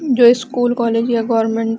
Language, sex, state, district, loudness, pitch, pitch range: Hindi, female, Chhattisgarh, Balrampur, -15 LUFS, 235 Hz, 230-245 Hz